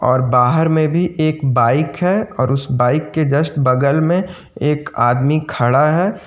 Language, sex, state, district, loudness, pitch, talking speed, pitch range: Hindi, male, Jharkhand, Ranchi, -16 LUFS, 150 Hz, 170 wpm, 130-160 Hz